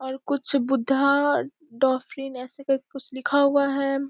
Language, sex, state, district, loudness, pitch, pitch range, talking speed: Hindi, female, Bihar, Jamui, -24 LUFS, 275 Hz, 265-280 Hz, 145 wpm